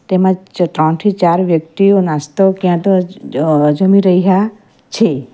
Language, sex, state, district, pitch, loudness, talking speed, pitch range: Gujarati, female, Gujarat, Valsad, 185 Hz, -13 LUFS, 125 wpm, 165-195 Hz